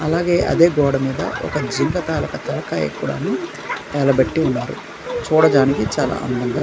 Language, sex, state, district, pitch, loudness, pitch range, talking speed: Telugu, male, Andhra Pradesh, Manyam, 145 Hz, -19 LUFS, 135-165 Hz, 125 wpm